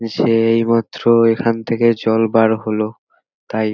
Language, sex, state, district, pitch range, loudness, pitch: Bengali, male, West Bengal, North 24 Parganas, 110-115 Hz, -16 LUFS, 115 Hz